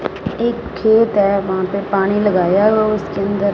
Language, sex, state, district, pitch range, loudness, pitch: Hindi, female, Punjab, Fazilka, 195-215 Hz, -16 LUFS, 200 Hz